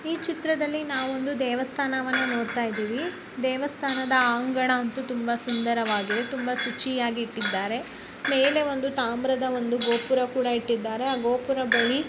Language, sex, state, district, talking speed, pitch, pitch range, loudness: Kannada, male, Karnataka, Bellary, 105 wpm, 255 Hz, 235-270 Hz, -25 LUFS